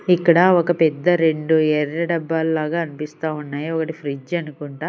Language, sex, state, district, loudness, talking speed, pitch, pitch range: Telugu, female, Andhra Pradesh, Sri Satya Sai, -19 LUFS, 145 wpm, 160 Hz, 150-170 Hz